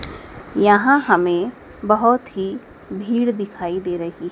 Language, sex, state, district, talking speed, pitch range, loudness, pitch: Hindi, female, Madhya Pradesh, Dhar, 110 wpm, 175-235 Hz, -19 LUFS, 200 Hz